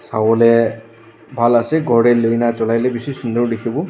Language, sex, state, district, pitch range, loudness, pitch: Nagamese, male, Nagaland, Dimapur, 115-120 Hz, -16 LUFS, 115 Hz